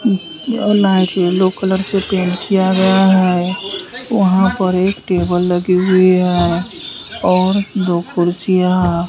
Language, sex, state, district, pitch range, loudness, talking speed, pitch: Hindi, male, Bihar, West Champaran, 180-195 Hz, -14 LUFS, 130 wpm, 185 Hz